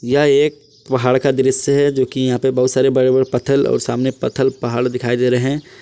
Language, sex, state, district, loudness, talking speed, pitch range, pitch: Hindi, male, Jharkhand, Palamu, -16 LUFS, 215 wpm, 125-140 Hz, 130 Hz